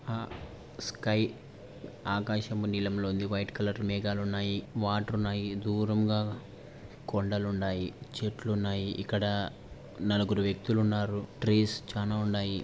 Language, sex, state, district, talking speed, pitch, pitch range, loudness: Telugu, male, Andhra Pradesh, Anantapur, 105 wpm, 105 Hz, 100-105 Hz, -32 LUFS